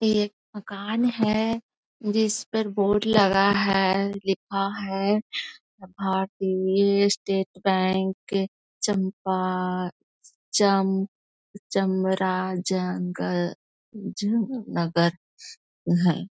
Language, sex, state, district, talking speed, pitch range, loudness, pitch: Hindi, female, Bihar, East Champaran, 75 wpm, 190-210 Hz, -25 LUFS, 195 Hz